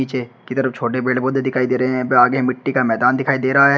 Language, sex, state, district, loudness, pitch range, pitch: Hindi, male, Uttar Pradesh, Shamli, -18 LUFS, 125-135 Hz, 130 Hz